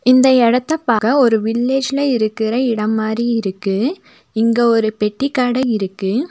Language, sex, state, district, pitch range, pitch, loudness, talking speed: Tamil, female, Tamil Nadu, Nilgiris, 220-255 Hz, 235 Hz, -16 LUFS, 135 wpm